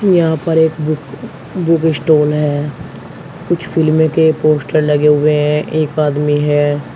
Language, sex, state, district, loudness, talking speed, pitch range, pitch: Hindi, male, Uttar Pradesh, Shamli, -14 LUFS, 145 wpm, 150-160 Hz, 155 Hz